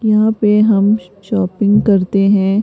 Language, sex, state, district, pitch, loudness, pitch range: Hindi, female, Rajasthan, Jaipur, 205 Hz, -13 LUFS, 195-215 Hz